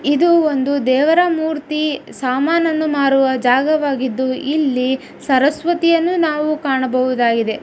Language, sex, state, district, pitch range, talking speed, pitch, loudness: Kannada, female, Karnataka, Dharwad, 260-315 Hz, 85 wpm, 285 Hz, -16 LUFS